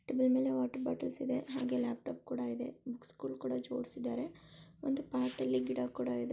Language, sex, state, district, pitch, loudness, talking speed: Kannada, female, Karnataka, Shimoga, 245 Hz, -37 LUFS, 180 wpm